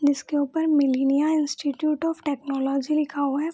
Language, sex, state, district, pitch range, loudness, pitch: Hindi, female, Bihar, Purnia, 280-305 Hz, -24 LUFS, 290 Hz